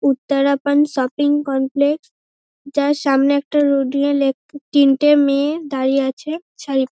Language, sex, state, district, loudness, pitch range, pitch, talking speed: Bengali, female, West Bengal, North 24 Parganas, -17 LUFS, 275-290 Hz, 280 Hz, 95 wpm